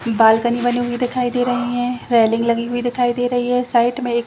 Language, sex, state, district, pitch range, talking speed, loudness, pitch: Hindi, female, Chhattisgarh, Rajnandgaon, 235-245 Hz, 240 wpm, -18 LUFS, 245 Hz